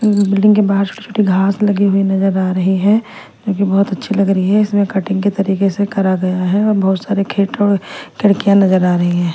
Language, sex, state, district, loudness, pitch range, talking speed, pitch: Hindi, female, Bihar, West Champaran, -14 LUFS, 190-205 Hz, 235 wpm, 195 Hz